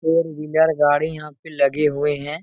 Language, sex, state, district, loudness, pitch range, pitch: Hindi, male, Bihar, Araria, -20 LUFS, 145-160 Hz, 150 Hz